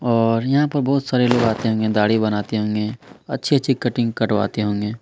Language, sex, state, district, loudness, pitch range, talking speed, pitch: Hindi, male, Chhattisgarh, Kabirdham, -19 LUFS, 105-125 Hz, 180 wpm, 115 Hz